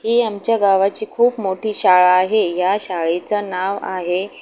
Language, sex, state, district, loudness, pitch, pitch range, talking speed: Marathi, female, Maharashtra, Aurangabad, -17 LUFS, 195 Hz, 185-215 Hz, 150 wpm